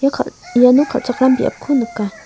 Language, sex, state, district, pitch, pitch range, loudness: Garo, female, Meghalaya, South Garo Hills, 260 Hz, 245-270 Hz, -15 LUFS